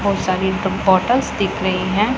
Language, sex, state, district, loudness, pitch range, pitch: Hindi, female, Punjab, Pathankot, -18 LUFS, 185-210 Hz, 190 Hz